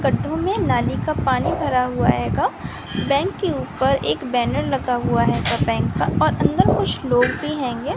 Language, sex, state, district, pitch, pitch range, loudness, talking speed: Hindi, female, Bihar, Sitamarhi, 255 Hz, 250-275 Hz, -20 LUFS, 180 wpm